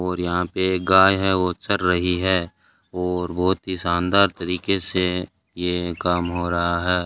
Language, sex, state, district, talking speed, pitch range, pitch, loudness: Hindi, male, Rajasthan, Bikaner, 180 wpm, 90-95 Hz, 90 Hz, -21 LUFS